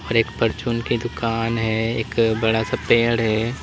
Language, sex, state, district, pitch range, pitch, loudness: Hindi, male, Uttar Pradesh, Lalitpur, 110-115 Hz, 115 Hz, -21 LUFS